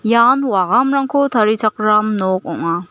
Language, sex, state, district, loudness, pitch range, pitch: Garo, female, Meghalaya, West Garo Hills, -15 LUFS, 195-255 Hz, 215 Hz